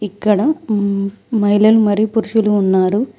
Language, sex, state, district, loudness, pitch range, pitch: Telugu, female, Telangana, Mahabubabad, -15 LUFS, 205-220 Hz, 210 Hz